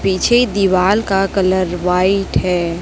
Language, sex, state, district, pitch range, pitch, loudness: Hindi, female, Chhattisgarh, Raipur, 180-195 Hz, 190 Hz, -15 LUFS